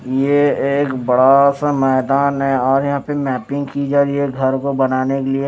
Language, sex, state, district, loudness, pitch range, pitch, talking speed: Hindi, male, Chhattisgarh, Raipur, -16 LUFS, 135-140 Hz, 140 Hz, 210 wpm